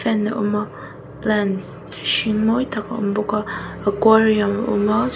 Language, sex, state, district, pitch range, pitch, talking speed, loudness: Mizo, female, Mizoram, Aizawl, 210-220 Hz, 210 Hz, 175 wpm, -20 LUFS